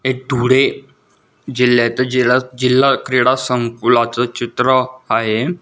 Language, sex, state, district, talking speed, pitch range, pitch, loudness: Marathi, male, Maharashtra, Dhule, 95 wpm, 120-130 Hz, 125 Hz, -15 LUFS